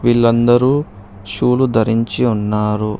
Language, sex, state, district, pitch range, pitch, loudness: Telugu, male, Telangana, Hyderabad, 105-120 Hz, 115 Hz, -15 LUFS